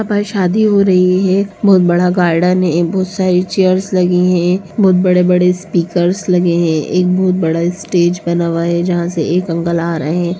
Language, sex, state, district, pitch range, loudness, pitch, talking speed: Hindi, female, Bihar, Begusarai, 175-185 Hz, -13 LUFS, 180 Hz, 195 wpm